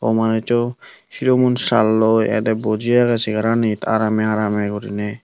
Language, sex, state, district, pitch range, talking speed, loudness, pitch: Chakma, male, Tripura, Unakoti, 110-120 Hz, 160 wpm, -18 LUFS, 110 Hz